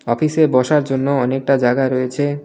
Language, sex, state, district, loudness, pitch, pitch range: Bengali, male, West Bengal, Alipurduar, -16 LUFS, 135 Hz, 130-145 Hz